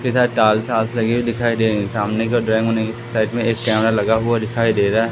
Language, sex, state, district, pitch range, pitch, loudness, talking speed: Hindi, male, Madhya Pradesh, Katni, 110-115 Hz, 115 Hz, -18 LUFS, 245 wpm